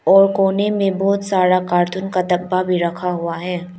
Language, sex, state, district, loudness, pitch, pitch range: Hindi, female, Arunachal Pradesh, Lower Dibang Valley, -17 LUFS, 185 Hz, 180-195 Hz